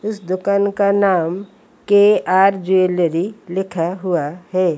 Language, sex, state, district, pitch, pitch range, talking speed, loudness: Hindi, female, Odisha, Malkangiri, 190 Hz, 180-200 Hz, 115 wpm, -17 LUFS